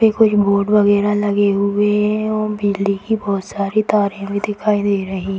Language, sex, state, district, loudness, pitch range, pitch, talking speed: Hindi, female, Bihar, Samastipur, -17 LUFS, 200-210 Hz, 205 Hz, 190 wpm